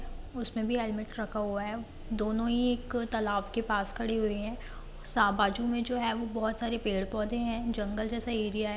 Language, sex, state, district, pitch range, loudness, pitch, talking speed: Hindi, female, Jharkhand, Jamtara, 210-235 Hz, -32 LUFS, 225 Hz, 200 wpm